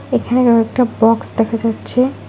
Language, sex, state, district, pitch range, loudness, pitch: Bengali, female, West Bengal, Alipurduar, 230-250 Hz, -15 LUFS, 230 Hz